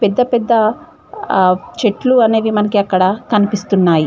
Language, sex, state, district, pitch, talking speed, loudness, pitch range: Telugu, female, Telangana, Mahabubabad, 220 Hz, 120 wpm, -14 LUFS, 200-245 Hz